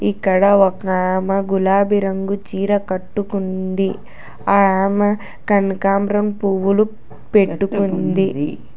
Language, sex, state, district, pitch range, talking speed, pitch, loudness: Telugu, female, Telangana, Hyderabad, 190-205 Hz, 80 wpm, 195 Hz, -17 LUFS